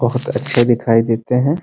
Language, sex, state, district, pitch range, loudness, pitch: Hindi, male, Bihar, Muzaffarpur, 115-125 Hz, -16 LUFS, 120 Hz